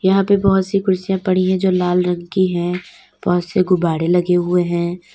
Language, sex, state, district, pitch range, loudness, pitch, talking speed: Hindi, female, Uttar Pradesh, Lalitpur, 175-190 Hz, -17 LUFS, 180 Hz, 210 wpm